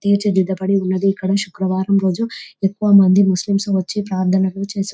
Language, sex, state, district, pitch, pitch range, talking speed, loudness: Telugu, female, Telangana, Nalgonda, 195 Hz, 190-200 Hz, 160 wpm, -17 LUFS